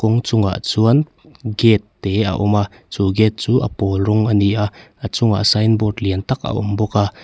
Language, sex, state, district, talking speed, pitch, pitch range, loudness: Mizo, male, Mizoram, Aizawl, 205 wpm, 105 Hz, 100-115 Hz, -17 LUFS